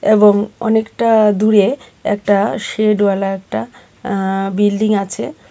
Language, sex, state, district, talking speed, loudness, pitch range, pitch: Bengali, female, Tripura, West Tripura, 110 wpm, -15 LUFS, 200-215 Hz, 210 Hz